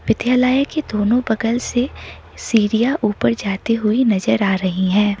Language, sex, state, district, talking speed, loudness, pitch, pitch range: Hindi, female, Sikkim, Gangtok, 150 wpm, -18 LUFS, 225 Hz, 205-250 Hz